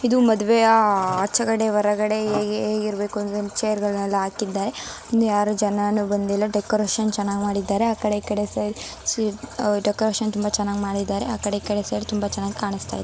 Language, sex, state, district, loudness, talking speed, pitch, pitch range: Kannada, female, Karnataka, Mysore, -22 LUFS, 145 wpm, 210 Hz, 205-215 Hz